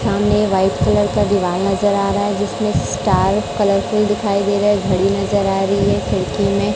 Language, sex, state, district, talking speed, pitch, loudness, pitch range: Hindi, male, Chhattisgarh, Raipur, 205 wpm, 200 Hz, -17 LUFS, 190-205 Hz